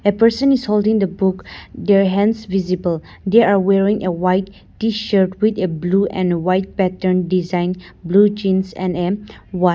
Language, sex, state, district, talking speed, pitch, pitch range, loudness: English, female, Nagaland, Dimapur, 180 wpm, 190 Hz, 185-205 Hz, -17 LUFS